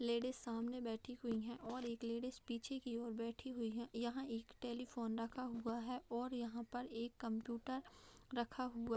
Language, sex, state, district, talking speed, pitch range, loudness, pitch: Hindi, female, Bihar, Madhepura, 185 wpm, 230-250 Hz, -46 LUFS, 235 Hz